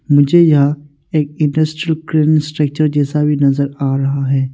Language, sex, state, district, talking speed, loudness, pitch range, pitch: Hindi, male, Arunachal Pradesh, Longding, 130 wpm, -14 LUFS, 140-155 Hz, 150 Hz